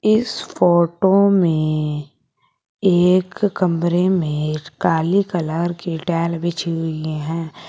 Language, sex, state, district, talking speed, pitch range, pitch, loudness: Hindi, female, Uttar Pradesh, Shamli, 100 wpm, 160-185 Hz, 170 Hz, -19 LUFS